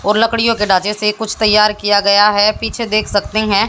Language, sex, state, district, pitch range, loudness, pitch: Hindi, female, Haryana, Jhajjar, 205-215 Hz, -13 LUFS, 210 Hz